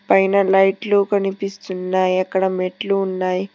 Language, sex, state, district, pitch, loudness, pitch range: Telugu, female, Telangana, Hyderabad, 195 Hz, -19 LUFS, 185-195 Hz